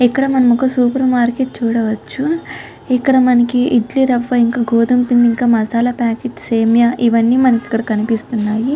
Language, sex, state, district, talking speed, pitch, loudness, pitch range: Telugu, female, Andhra Pradesh, Chittoor, 135 wpm, 240 Hz, -14 LUFS, 230-255 Hz